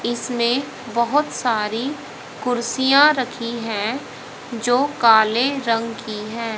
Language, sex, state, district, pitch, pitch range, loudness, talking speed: Hindi, female, Haryana, Charkhi Dadri, 235 Hz, 230-260 Hz, -20 LUFS, 100 wpm